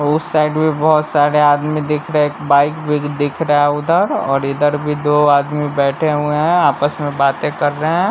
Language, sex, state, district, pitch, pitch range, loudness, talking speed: Hindi, male, Bihar, West Champaran, 150 Hz, 145-155 Hz, -15 LUFS, 220 wpm